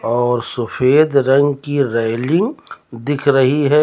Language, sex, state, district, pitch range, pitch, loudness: Hindi, male, Uttar Pradesh, Lucknow, 120-145 Hz, 135 Hz, -16 LUFS